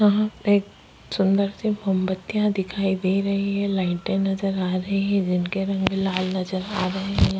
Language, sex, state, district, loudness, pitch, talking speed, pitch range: Hindi, female, Bihar, Vaishali, -23 LUFS, 195 Hz, 185 wpm, 190-200 Hz